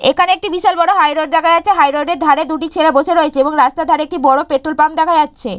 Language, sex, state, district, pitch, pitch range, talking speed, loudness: Bengali, female, West Bengal, Purulia, 315 Hz, 290-335 Hz, 260 wpm, -13 LUFS